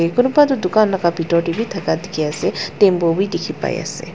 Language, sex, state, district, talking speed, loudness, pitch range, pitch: Nagamese, female, Nagaland, Dimapur, 215 wpm, -18 LUFS, 165-210 Hz, 175 Hz